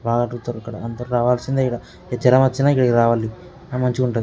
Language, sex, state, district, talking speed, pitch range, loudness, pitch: Telugu, male, Telangana, Karimnagar, 185 wpm, 115-130 Hz, -19 LUFS, 120 Hz